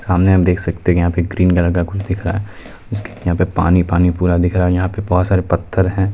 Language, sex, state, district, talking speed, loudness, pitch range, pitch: Hindi, male, Bihar, Purnia, 275 wpm, -16 LUFS, 90-95 Hz, 90 Hz